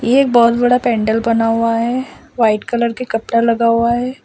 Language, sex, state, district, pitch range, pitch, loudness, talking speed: Hindi, male, Assam, Sonitpur, 230-245 Hz, 235 Hz, -15 LUFS, 210 wpm